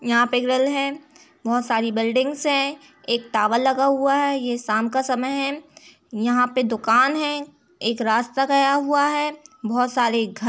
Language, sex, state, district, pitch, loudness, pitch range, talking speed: Hindi, female, Uttar Pradesh, Jalaun, 260 Hz, -21 LUFS, 235-285 Hz, 175 wpm